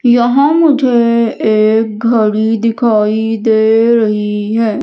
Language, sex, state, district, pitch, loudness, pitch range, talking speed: Hindi, female, Madhya Pradesh, Umaria, 225 Hz, -11 LUFS, 215-235 Hz, 100 wpm